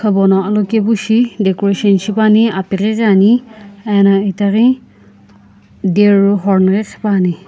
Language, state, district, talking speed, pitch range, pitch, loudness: Sumi, Nagaland, Kohima, 105 wpm, 195-215 Hz, 200 Hz, -13 LUFS